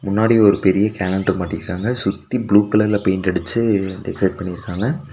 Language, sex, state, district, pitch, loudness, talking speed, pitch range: Tamil, male, Tamil Nadu, Nilgiris, 100 Hz, -18 LUFS, 140 wpm, 95-105 Hz